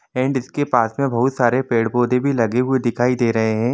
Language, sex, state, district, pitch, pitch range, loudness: Hindi, male, Jharkhand, Jamtara, 125 Hz, 120-130 Hz, -19 LUFS